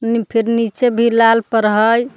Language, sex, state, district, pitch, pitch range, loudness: Magahi, female, Jharkhand, Palamu, 230 Hz, 225-235 Hz, -14 LUFS